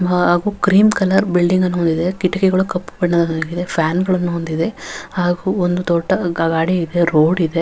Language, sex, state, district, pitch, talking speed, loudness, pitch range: Kannada, female, Karnataka, Raichur, 175 Hz, 155 wpm, -17 LUFS, 170-185 Hz